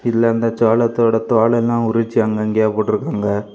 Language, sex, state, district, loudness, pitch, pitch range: Tamil, male, Tamil Nadu, Kanyakumari, -17 LUFS, 115 Hz, 110-115 Hz